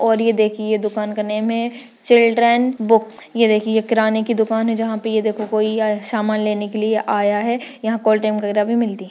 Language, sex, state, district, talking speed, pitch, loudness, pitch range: Hindi, female, Uttarakhand, Tehri Garhwal, 245 wpm, 220 Hz, -18 LUFS, 215-230 Hz